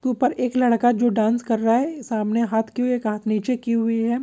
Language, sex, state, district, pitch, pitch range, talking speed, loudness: Hindi, male, Jharkhand, Sahebganj, 235 Hz, 225-250 Hz, 255 wpm, -21 LUFS